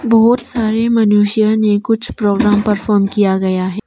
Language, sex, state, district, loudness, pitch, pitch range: Hindi, female, Arunachal Pradesh, Papum Pare, -13 LUFS, 210 Hz, 205-225 Hz